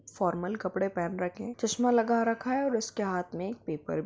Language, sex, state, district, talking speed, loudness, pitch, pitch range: Hindi, female, Jharkhand, Sahebganj, 235 wpm, -30 LUFS, 210 Hz, 180-235 Hz